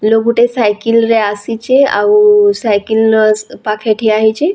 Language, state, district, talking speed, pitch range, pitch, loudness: Sambalpuri, Odisha, Sambalpur, 145 wpm, 210-230 Hz, 220 Hz, -11 LUFS